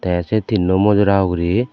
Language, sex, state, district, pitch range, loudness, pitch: Chakma, male, Tripura, Dhalai, 90-105 Hz, -16 LUFS, 95 Hz